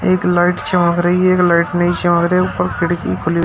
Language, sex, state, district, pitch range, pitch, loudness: Hindi, male, Uttar Pradesh, Shamli, 170-180 Hz, 175 Hz, -15 LUFS